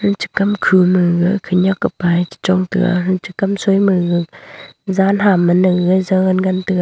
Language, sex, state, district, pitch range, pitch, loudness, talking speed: Wancho, female, Arunachal Pradesh, Longding, 180-195 Hz, 185 Hz, -15 LUFS, 160 wpm